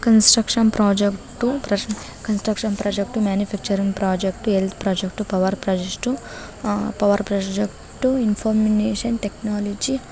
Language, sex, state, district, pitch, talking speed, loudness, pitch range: Kannada, female, Karnataka, Dharwad, 205 Hz, 90 wpm, -21 LUFS, 200-220 Hz